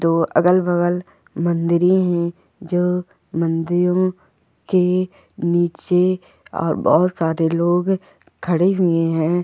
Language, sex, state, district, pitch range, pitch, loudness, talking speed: Hindi, female, Goa, North and South Goa, 170-185 Hz, 175 Hz, -19 LUFS, 100 wpm